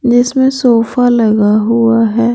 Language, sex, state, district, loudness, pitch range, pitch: Hindi, female, Bihar, Patna, -11 LUFS, 225-245 Hz, 235 Hz